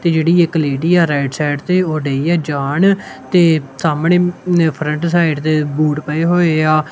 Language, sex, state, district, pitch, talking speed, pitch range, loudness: Punjabi, male, Punjab, Kapurthala, 160 Hz, 180 wpm, 150-170 Hz, -15 LUFS